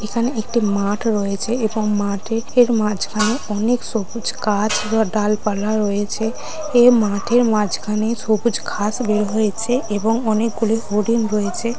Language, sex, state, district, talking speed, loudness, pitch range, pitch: Bengali, female, West Bengal, Malda, 125 wpm, -19 LUFS, 210-230 Hz, 215 Hz